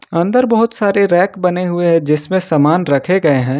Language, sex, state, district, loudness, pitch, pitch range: Hindi, male, Jharkhand, Ranchi, -13 LUFS, 175 Hz, 150-195 Hz